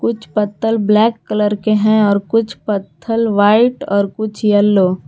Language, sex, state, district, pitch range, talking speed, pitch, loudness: Hindi, female, Jharkhand, Garhwa, 200-220 Hz, 165 wpm, 210 Hz, -15 LUFS